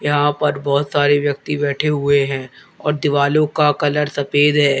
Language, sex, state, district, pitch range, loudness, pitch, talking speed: Hindi, male, Uttar Pradesh, Lalitpur, 140-150 Hz, -17 LUFS, 145 Hz, 175 wpm